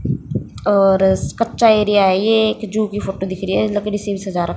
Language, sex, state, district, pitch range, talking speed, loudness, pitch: Hindi, female, Haryana, Jhajjar, 190-215 Hz, 225 wpm, -17 LUFS, 200 Hz